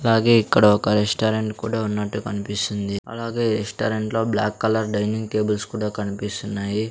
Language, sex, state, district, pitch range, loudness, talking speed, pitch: Telugu, male, Andhra Pradesh, Sri Satya Sai, 105-110 Hz, -22 LUFS, 140 wpm, 105 Hz